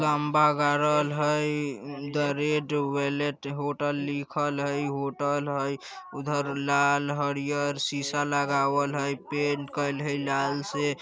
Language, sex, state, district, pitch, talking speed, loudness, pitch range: Bajjika, male, Bihar, Vaishali, 145 Hz, 120 wpm, -27 LUFS, 140-145 Hz